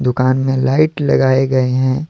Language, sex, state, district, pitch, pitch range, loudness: Hindi, male, Jharkhand, Deoghar, 130 Hz, 130-135 Hz, -14 LUFS